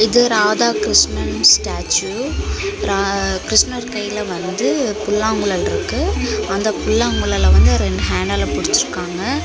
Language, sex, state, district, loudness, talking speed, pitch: Tamil, female, Tamil Nadu, Kanyakumari, -16 LUFS, 100 wpm, 195 Hz